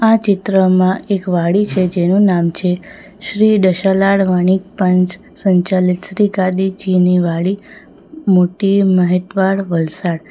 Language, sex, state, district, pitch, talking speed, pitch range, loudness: Gujarati, female, Gujarat, Valsad, 190 Hz, 110 wpm, 180-195 Hz, -14 LUFS